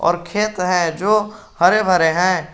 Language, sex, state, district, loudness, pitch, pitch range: Hindi, male, Jharkhand, Garhwa, -17 LUFS, 180 Hz, 175-210 Hz